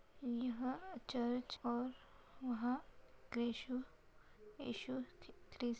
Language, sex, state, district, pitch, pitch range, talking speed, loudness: Hindi, female, Maharashtra, Sindhudurg, 250 Hz, 240-260 Hz, 70 wpm, -44 LUFS